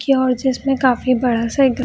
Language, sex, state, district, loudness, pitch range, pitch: Hindi, female, Bihar, Muzaffarpur, -17 LUFS, 250-270 Hz, 255 Hz